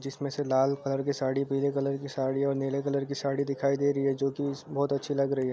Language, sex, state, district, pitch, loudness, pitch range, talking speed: Hindi, male, Uttar Pradesh, Jalaun, 140 Hz, -29 LUFS, 135-140 Hz, 280 wpm